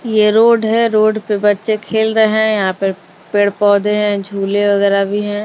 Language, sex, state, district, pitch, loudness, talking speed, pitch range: Hindi, female, Maharashtra, Mumbai Suburban, 210 Hz, -14 LUFS, 185 wpm, 200-220 Hz